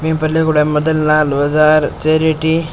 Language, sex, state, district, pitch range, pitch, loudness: Rajasthani, male, Rajasthan, Churu, 155-160 Hz, 155 Hz, -13 LUFS